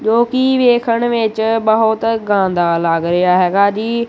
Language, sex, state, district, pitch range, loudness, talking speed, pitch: Punjabi, female, Punjab, Kapurthala, 190-235 Hz, -14 LUFS, 145 wpm, 220 Hz